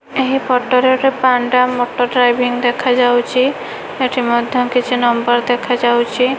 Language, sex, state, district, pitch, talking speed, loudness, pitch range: Odia, female, Odisha, Malkangiri, 250 Hz, 120 wpm, -14 LUFS, 245-255 Hz